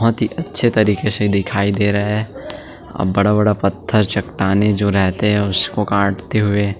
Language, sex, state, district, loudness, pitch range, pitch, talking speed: Hindi, male, Chhattisgarh, Sukma, -16 LUFS, 100-105 Hz, 105 Hz, 160 wpm